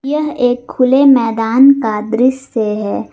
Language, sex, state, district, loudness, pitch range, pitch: Hindi, female, Jharkhand, Garhwa, -13 LUFS, 225-270 Hz, 245 Hz